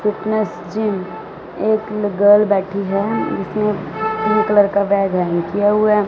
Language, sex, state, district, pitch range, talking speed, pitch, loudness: Hindi, female, Punjab, Fazilka, 195-215 Hz, 120 wpm, 205 Hz, -17 LUFS